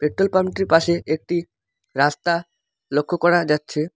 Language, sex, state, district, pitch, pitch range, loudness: Bengali, male, West Bengal, Alipurduar, 170 Hz, 150-175 Hz, -20 LUFS